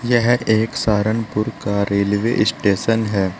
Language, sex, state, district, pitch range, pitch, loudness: Hindi, male, Uttar Pradesh, Saharanpur, 100-115 Hz, 110 Hz, -18 LUFS